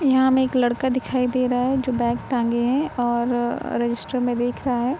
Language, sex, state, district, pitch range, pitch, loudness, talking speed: Hindi, female, Bihar, Gopalganj, 240-260 Hz, 250 Hz, -22 LUFS, 215 wpm